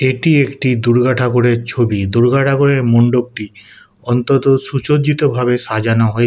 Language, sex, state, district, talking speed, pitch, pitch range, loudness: Bengali, male, West Bengal, Kolkata, 115 wpm, 125 Hz, 120-135 Hz, -14 LUFS